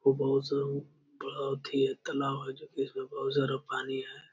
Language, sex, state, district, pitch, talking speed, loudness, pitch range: Hindi, male, Bihar, Jamui, 135 Hz, 140 wpm, -33 LUFS, 135-140 Hz